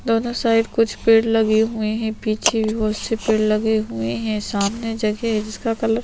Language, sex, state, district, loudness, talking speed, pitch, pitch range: Hindi, female, Chhattisgarh, Sukma, -20 LUFS, 210 wpm, 220 Hz, 215-225 Hz